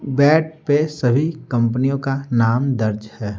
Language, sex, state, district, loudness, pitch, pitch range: Hindi, male, Bihar, Patna, -19 LUFS, 135 Hz, 115-145 Hz